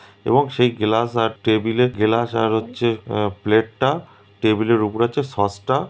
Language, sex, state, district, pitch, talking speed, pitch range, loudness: Bengali, male, West Bengal, Kolkata, 115 Hz, 130 wpm, 110-120 Hz, -20 LUFS